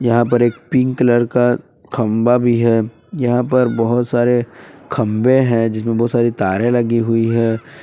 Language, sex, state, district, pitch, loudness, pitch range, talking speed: Hindi, male, Jharkhand, Palamu, 120 Hz, -16 LUFS, 115-125 Hz, 170 wpm